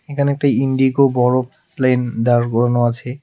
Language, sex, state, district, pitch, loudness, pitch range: Bengali, male, West Bengal, Alipurduar, 130 Hz, -16 LUFS, 120-140 Hz